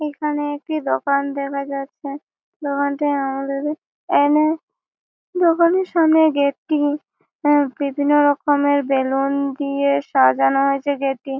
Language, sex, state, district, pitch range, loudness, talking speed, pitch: Bengali, female, West Bengal, Malda, 275-300 Hz, -19 LUFS, 100 wpm, 285 Hz